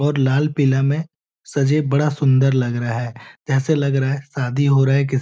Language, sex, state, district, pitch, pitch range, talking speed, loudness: Hindi, male, Bihar, Jamui, 140 Hz, 130-145 Hz, 240 wpm, -18 LUFS